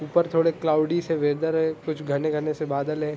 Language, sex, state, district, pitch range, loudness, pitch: Hindi, male, Jharkhand, Sahebganj, 150-160 Hz, -24 LUFS, 155 Hz